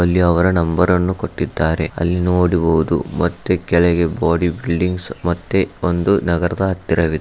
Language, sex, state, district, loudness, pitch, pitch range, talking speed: Kannada, male, Karnataka, Shimoga, -17 LUFS, 85 Hz, 85-90 Hz, 115 wpm